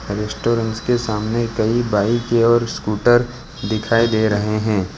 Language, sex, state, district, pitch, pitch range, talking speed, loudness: Hindi, male, Gujarat, Valsad, 115 Hz, 105-120 Hz, 135 wpm, -18 LUFS